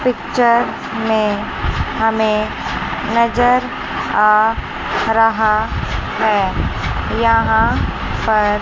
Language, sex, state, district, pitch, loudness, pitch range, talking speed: Hindi, female, Chandigarh, Chandigarh, 225 Hz, -16 LUFS, 215-235 Hz, 65 wpm